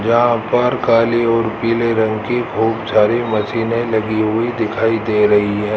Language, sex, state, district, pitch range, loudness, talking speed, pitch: Hindi, male, Rajasthan, Jaipur, 110-115 Hz, -16 LUFS, 165 wpm, 115 Hz